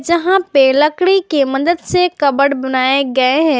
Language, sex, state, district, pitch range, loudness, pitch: Hindi, female, Jharkhand, Garhwa, 270-345 Hz, -13 LUFS, 290 Hz